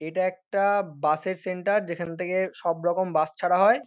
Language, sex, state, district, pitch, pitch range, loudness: Bengali, male, West Bengal, North 24 Parganas, 180 Hz, 170-185 Hz, -26 LUFS